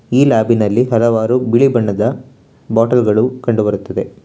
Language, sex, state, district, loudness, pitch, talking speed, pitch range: Kannada, male, Karnataka, Bangalore, -14 LUFS, 115 Hz, 125 wpm, 110-125 Hz